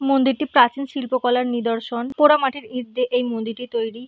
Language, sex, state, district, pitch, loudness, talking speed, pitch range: Bengali, female, West Bengal, Purulia, 250 Hz, -20 LUFS, 160 wpm, 235-270 Hz